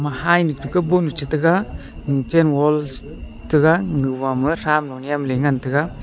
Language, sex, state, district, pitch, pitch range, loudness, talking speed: Wancho, male, Arunachal Pradesh, Longding, 150 Hz, 135-165 Hz, -19 LUFS, 130 wpm